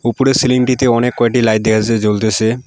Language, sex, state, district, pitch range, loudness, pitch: Bengali, male, West Bengal, Alipurduar, 110-125 Hz, -13 LUFS, 120 Hz